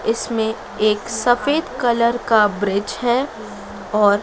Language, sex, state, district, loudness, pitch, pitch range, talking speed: Hindi, female, Madhya Pradesh, Dhar, -19 LUFS, 225 Hz, 210-240 Hz, 115 wpm